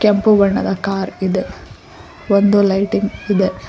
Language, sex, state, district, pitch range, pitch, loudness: Kannada, female, Karnataka, Koppal, 195-205 Hz, 200 Hz, -16 LUFS